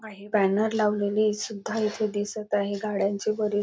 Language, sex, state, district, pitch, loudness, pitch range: Marathi, female, Maharashtra, Nagpur, 210 Hz, -26 LUFS, 205-215 Hz